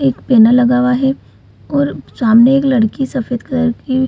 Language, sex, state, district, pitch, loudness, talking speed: Hindi, female, Bihar, Purnia, 245 Hz, -13 LUFS, 190 wpm